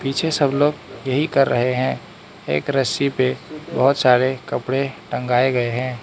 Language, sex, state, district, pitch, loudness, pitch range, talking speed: Hindi, male, Arunachal Pradesh, Lower Dibang Valley, 130 Hz, -20 LUFS, 125-140 Hz, 160 wpm